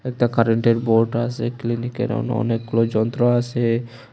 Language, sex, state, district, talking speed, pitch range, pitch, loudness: Bengali, male, Tripura, West Tripura, 130 wpm, 115-120 Hz, 115 Hz, -20 LUFS